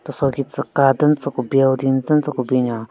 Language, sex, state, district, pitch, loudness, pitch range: Rengma, female, Nagaland, Kohima, 135 Hz, -18 LUFS, 130-140 Hz